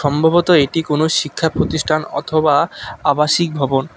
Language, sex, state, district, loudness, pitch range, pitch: Bengali, male, West Bengal, Alipurduar, -16 LUFS, 145-160 Hz, 155 Hz